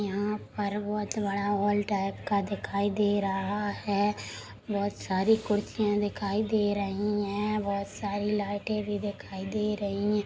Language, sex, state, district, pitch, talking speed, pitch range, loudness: Hindi, female, Chhattisgarh, Sukma, 205 Hz, 145 wpm, 200-210 Hz, -30 LUFS